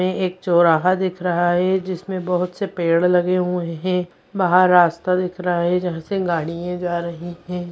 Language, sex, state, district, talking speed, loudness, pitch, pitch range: Hindi, female, Bihar, Jahanabad, 185 wpm, -19 LUFS, 180 Hz, 175-185 Hz